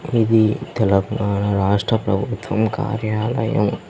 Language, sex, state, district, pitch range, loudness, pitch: Telugu, male, Telangana, Hyderabad, 100-115 Hz, -19 LUFS, 110 Hz